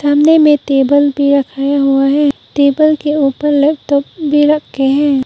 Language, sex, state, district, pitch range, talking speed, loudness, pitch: Hindi, female, Arunachal Pradesh, Papum Pare, 280-295 Hz, 160 wpm, -12 LUFS, 285 Hz